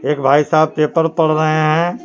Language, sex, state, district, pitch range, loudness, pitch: Hindi, male, Jharkhand, Palamu, 150-165 Hz, -14 LUFS, 155 Hz